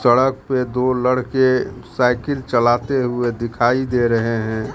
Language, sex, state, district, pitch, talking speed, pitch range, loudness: Hindi, male, Bihar, Katihar, 125 Hz, 140 wpm, 120-130 Hz, -18 LUFS